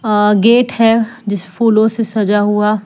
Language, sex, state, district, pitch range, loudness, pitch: Hindi, female, Jharkhand, Deoghar, 210-225 Hz, -13 LUFS, 215 Hz